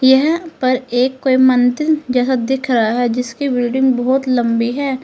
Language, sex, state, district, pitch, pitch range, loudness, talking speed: Hindi, female, Uttar Pradesh, Lalitpur, 255 Hz, 245-265 Hz, -15 LUFS, 165 wpm